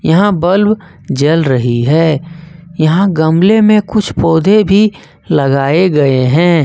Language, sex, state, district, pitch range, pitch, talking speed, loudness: Hindi, male, Jharkhand, Ranchi, 150-200 Hz, 165 Hz, 125 wpm, -11 LUFS